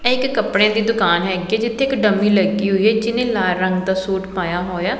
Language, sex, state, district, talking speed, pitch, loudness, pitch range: Punjabi, female, Punjab, Pathankot, 215 wpm, 200 Hz, -17 LUFS, 185-225 Hz